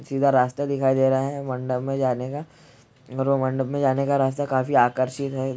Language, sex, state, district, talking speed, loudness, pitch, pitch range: Hindi, male, Bihar, Jahanabad, 215 wpm, -23 LUFS, 135 Hz, 130-140 Hz